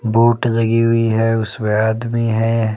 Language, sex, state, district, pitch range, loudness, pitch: Hindi, male, Himachal Pradesh, Shimla, 110-115 Hz, -16 LUFS, 115 Hz